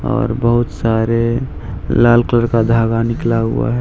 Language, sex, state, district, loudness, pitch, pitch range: Hindi, male, Jharkhand, Deoghar, -15 LUFS, 115 Hz, 115-120 Hz